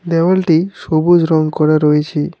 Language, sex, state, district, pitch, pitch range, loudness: Bengali, male, West Bengal, Alipurduar, 160 Hz, 155-170 Hz, -13 LUFS